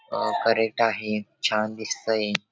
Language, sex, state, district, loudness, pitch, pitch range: Marathi, male, Maharashtra, Dhule, -25 LUFS, 110 Hz, 105-115 Hz